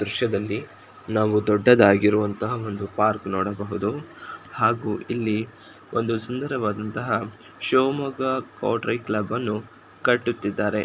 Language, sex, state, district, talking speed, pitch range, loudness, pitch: Kannada, male, Karnataka, Shimoga, 75 wpm, 105-120 Hz, -24 LUFS, 110 Hz